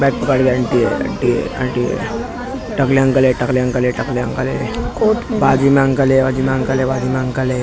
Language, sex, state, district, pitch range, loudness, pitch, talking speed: Hindi, male, Maharashtra, Mumbai Suburban, 125-135 Hz, -16 LUFS, 130 Hz, 210 wpm